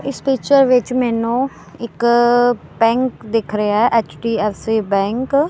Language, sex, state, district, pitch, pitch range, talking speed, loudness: Punjabi, female, Punjab, Kapurthala, 235 Hz, 215-255 Hz, 130 wpm, -16 LUFS